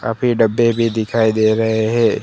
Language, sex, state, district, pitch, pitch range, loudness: Hindi, male, Gujarat, Gandhinagar, 115 Hz, 110-115 Hz, -16 LUFS